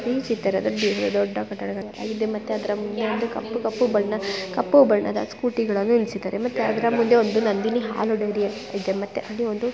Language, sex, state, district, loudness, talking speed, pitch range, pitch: Kannada, female, Karnataka, Mysore, -23 LUFS, 165 wpm, 200-230 Hz, 220 Hz